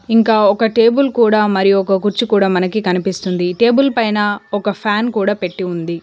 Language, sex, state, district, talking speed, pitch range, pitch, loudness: Telugu, female, Telangana, Komaram Bheem, 170 wpm, 190-225 Hz, 205 Hz, -15 LUFS